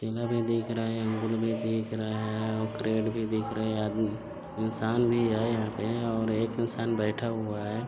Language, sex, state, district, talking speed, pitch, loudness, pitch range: Hindi, male, Chhattisgarh, Bilaspur, 215 wpm, 110 Hz, -30 LUFS, 110-115 Hz